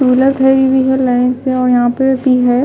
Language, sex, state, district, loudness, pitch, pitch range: Hindi, female, Himachal Pradesh, Shimla, -12 LUFS, 260 Hz, 250-265 Hz